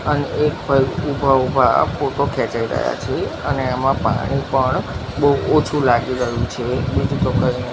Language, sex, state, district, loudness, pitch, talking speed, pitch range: Gujarati, male, Gujarat, Gandhinagar, -18 LUFS, 130 Hz, 180 wpm, 125-140 Hz